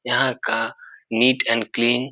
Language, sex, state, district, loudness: Hindi, male, Bihar, Supaul, -20 LUFS